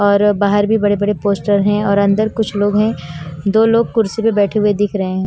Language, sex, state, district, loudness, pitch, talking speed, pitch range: Hindi, female, Himachal Pradesh, Shimla, -15 LUFS, 205 Hz, 240 wpm, 200-215 Hz